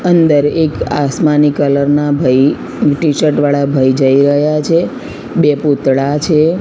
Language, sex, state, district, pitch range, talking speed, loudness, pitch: Gujarati, female, Gujarat, Gandhinagar, 140-155 Hz, 135 wpm, -12 LUFS, 145 Hz